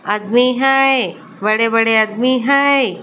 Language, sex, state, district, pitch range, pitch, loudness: Hindi, female, Bihar, Patna, 220-270 Hz, 245 Hz, -14 LUFS